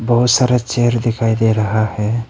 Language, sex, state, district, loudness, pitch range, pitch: Hindi, male, Arunachal Pradesh, Papum Pare, -15 LUFS, 110-120 Hz, 115 Hz